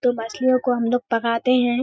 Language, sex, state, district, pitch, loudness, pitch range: Hindi, female, Bihar, Kishanganj, 245 Hz, -21 LUFS, 230-255 Hz